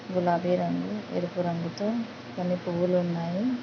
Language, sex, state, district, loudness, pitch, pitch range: Telugu, female, Andhra Pradesh, Krishna, -29 LUFS, 180 Hz, 175-205 Hz